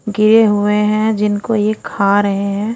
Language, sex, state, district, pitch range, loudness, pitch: Hindi, female, Odisha, Khordha, 205-215 Hz, -14 LUFS, 210 Hz